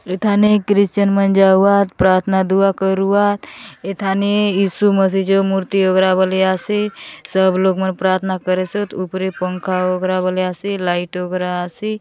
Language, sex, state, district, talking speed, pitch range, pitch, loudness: Halbi, female, Chhattisgarh, Bastar, 145 wpm, 185-200 Hz, 190 Hz, -16 LUFS